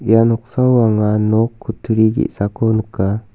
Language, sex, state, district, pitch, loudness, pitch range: Garo, male, Meghalaya, South Garo Hills, 110 Hz, -16 LUFS, 105-115 Hz